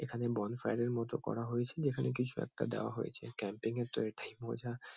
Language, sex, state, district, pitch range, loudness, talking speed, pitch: Bengali, male, West Bengal, Kolkata, 115-125 Hz, -38 LUFS, 195 wpm, 120 Hz